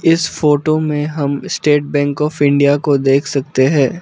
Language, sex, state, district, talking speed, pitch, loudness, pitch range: Hindi, male, Arunachal Pradesh, Lower Dibang Valley, 180 wpm, 145 Hz, -15 LUFS, 140-155 Hz